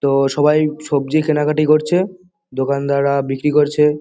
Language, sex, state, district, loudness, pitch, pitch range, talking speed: Bengali, male, West Bengal, Kolkata, -16 LUFS, 150 Hz, 140-155 Hz, 120 wpm